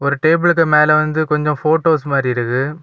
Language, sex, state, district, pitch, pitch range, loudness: Tamil, male, Tamil Nadu, Kanyakumari, 150 Hz, 140-160 Hz, -15 LUFS